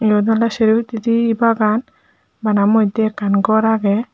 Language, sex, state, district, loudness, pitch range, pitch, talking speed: Chakma, male, Tripura, Unakoti, -16 LUFS, 210-230 Hz, 220 Hz, 145 wpm